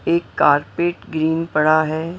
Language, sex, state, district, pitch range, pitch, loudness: Hindi, female, Maharashtra, Mumbai Suburban, 155-170 Hz, 160 Hz, -18 LUFS